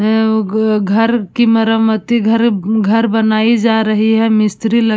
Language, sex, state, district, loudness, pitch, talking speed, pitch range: Hindi, female, Uttar Pradesh, Budaun, -13 LUFS, 220 Hz, 155 wpm, 215-225 Hz